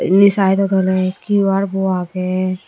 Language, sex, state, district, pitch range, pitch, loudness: Chakma, female, Tripura, Dhalai, 185-195 Hz, 190 Hz, -16 LUFS